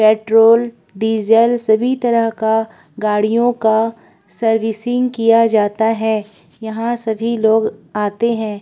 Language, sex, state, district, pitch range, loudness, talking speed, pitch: Hindi, female, Uttar Pradesh, Budaun, 215-230 Hz, -16 LUFS, 110 wpm, 225 Hz